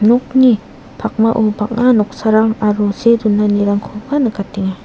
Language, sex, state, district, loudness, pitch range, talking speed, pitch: Garo, female, Meghalaya, South Garo Hills, -14 LUFS, 205-235 Hz, 100 wpm, 215 Hz